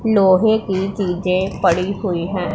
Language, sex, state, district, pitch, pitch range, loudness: Hindi, female, Punjab, Pathankot, 190 Hz, 180-200 Hz, -18 LUFS